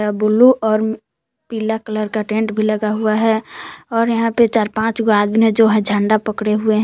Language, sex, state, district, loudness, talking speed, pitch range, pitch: Hindi, female, Jharkhand, Palamu, -16 LUFS, 200 wpm, 215-225 Hz, 220 Hz